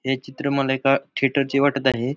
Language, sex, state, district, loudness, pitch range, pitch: Marathi, male, Maharashtra, Pune, -21 LUFS, 135-140 Hz, 135 Hz